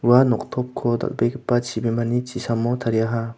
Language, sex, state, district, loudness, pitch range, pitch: Garo, male, Meghalaya, South Garo Hills, -22 LUFS, 115-125 Hz, 120 Hz